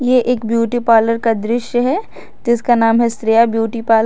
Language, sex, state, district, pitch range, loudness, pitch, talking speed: Hindi, female, Jharkhand, Garhwa, 225-240 Hz, -15 LUFS, 230 Hz, 205 wpm